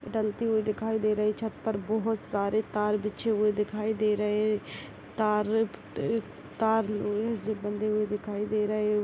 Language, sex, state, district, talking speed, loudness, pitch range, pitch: Hindi, female, Chhattisgarh, Bastar, 180 wpm, -29 LUFS, 210-220 Hz, 215 Hz